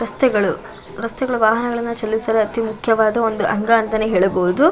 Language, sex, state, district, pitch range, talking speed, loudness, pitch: Kannada, female, Karnataka, Shimoga, 220-230 Hz, 125 wpm, -18 LUFS, 220 Hz